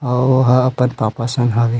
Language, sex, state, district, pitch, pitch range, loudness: Chhattisgarhi, male, Chhattisgarh, Rajnandgaon, 125 Hz, 120-125 Hz, -16 LUFS